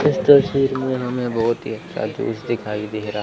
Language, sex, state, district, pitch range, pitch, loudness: Hindi, male, Chandigarh, Chandigarh, 110-135 Hz, 120 Hz, -20 LUFS